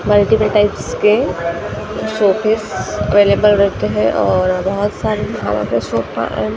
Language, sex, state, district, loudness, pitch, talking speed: Hindi, female, Maharashtra, Gondia, -15 LUFS, 195 Hz, 100 wpm